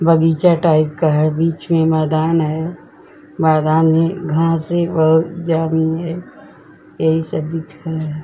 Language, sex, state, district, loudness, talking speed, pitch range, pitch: Hindi, female, Bihar, Vaishali, -16 LUFS, 155 wpm, 160-165 Hz, 160 Hz